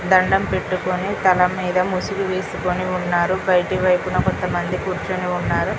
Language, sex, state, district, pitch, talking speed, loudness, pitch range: Telugu, female, Telangana, Karimnagar, 185 Hz, 105 wpm, -20 LUFS, 180-185 Hz